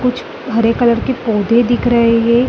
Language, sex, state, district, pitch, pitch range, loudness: Hindi, female, Chhattisgarh, Balrampur, 235 Hz, 230-245 Hz, -14 LUFS